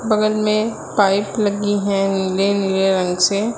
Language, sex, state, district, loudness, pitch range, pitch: Hindi, female, Uttar Pradesh, Lucknow, -18 LUFS, 195-215 Hz, 200 Hz